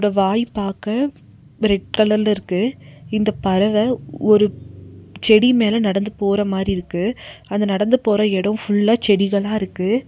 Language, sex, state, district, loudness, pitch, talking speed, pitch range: Tamil, female, Tamil Nadu, Nilgiris, -18 LUFS, 210 Hz, 125 wpm, 195-215 Hz